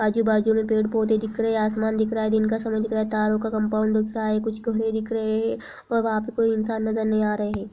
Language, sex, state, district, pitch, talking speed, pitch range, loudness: Hindi, female, Bihar, Sitamarhi, 220 Hz, 305 wpm, 215-220 Hz, -24 LUFS